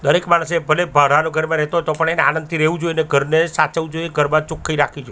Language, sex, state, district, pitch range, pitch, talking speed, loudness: Gujarati, male, Gujarat, Gandhinagar, 155-165 Hz, 160 Hz, 235 wpm, -17 LUFS